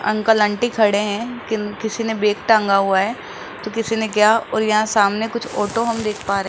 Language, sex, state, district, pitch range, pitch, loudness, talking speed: Hindi, female, Rajasthan, Jaipur, 210-225 Hz, 215 Hz, -18 LUFS, 230 wpm